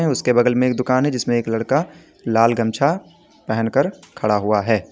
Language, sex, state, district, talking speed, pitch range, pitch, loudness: Hindi, male, Uttar Pradesh, Lalitpur, 185 wpm, 115-140 Hz, 125 Hz, -19 LUFS